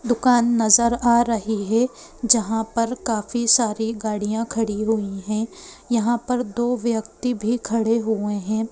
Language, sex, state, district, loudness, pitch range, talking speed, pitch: Hindi, female, Madhya Pradesh, Bhopal, -21 LUFS, 220-235 Hz, 145 wpm, 230 Hz